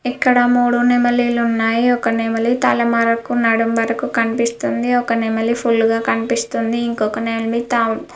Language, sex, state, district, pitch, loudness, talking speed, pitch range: Telugu, female, Andhra Pradesh, Guntur, 235 Hz, -17 LUFS, 145 wpm, 230-240 Hz